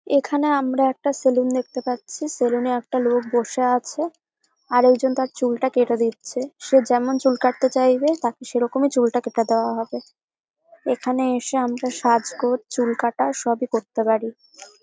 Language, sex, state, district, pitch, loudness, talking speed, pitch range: Bengali, female, West Bengal, Dakshin Dinajpur, 255 Hz, -21 LUFS, 155 wpm, 240-265 Hz